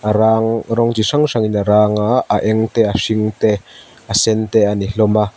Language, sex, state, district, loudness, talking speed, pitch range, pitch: Mizo, male, Mizoram, Aizawl, -15 LUFS, 245 wpm, 105-115 Hz, 110 Hz